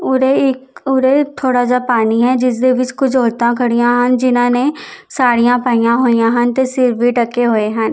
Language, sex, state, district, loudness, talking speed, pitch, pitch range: Punjabi, female, Chandigarh, Chandigarh, -14 LUFS, 190 wpm, 250 Hz, 240-260 Hz